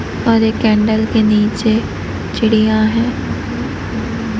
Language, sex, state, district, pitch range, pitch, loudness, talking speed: Hindi, female, Odisha, Nuapada, 215-225 Hz, 220 Hz, -15 LUFS, 95 wpm